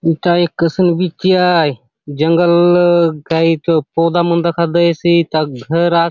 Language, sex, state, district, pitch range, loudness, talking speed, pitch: Halbi, male, Chhattisgarh, Bastar, 165-175 Hz, -13 LUFS, 145 wpm, 170 Hz